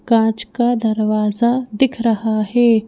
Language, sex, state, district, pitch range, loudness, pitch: Hindi, female, Madhya Pradesh, Bhopal, 215-240 Hz, -17 LUFS, 225 Hz